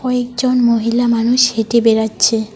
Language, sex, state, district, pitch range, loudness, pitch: Bengali, female, West Bengal, Alipurduar, 225-245 Hz, -14 LUFS, 235 Hz